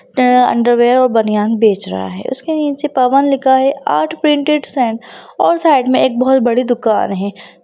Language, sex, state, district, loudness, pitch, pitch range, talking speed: Hindi, female, Bihar, Lakhisarai, -13 LUFS, 255 Hz, 230-280 Hz, 180 wpm